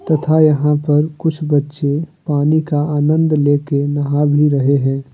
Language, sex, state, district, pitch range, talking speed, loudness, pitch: Hindi, male, Jharkhand, Deoghar, 145-155 Hz, 150 wpm, -15 LUFS, 150 Hz